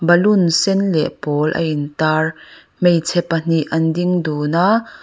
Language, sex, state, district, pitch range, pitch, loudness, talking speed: Mizo, female, Mizoram, Aizawl, 155-175 Hz, 165 Hz, -17 LUFS, 155 wpm